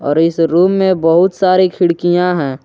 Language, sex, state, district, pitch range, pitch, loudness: Hindi, male, Jharkhand, Garhwa, 165-185 Hz, 175 Hz, -12 LUFS